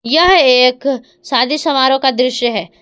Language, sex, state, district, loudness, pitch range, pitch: Hindi, female, Jharkhand, Palamu, -12 LUFS, 250-275 Hz, 255 Hz